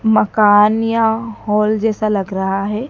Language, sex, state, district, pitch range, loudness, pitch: Hindi, female, Madhya Pradesh, Dhar, 205-225 Hz, -15 LUFS, 215 Hz